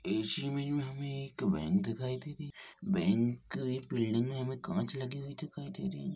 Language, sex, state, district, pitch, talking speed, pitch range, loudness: Hindi, male, Chhattisgarh, Jashpur, 140 Hz, 215 wpm, 130-170 Hz, -35 LUFS